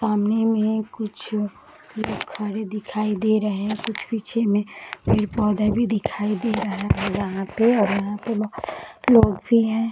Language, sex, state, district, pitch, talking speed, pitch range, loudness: Hindi, female, Bihar, Gaya, 215 Hz, 175 wpm, 210-225 Hz, -22 LUFS